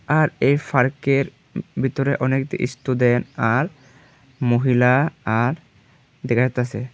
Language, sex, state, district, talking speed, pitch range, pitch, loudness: Bengali, male, Tripura, Dhalai, 95 wpm, 125-140 Hz, 130 Hz, -20 LUFS